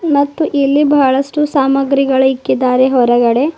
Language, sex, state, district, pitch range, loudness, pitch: Kannada, female, Karnataka, Bidar, 260-290 Hz, -12 LUFS, 275 Hz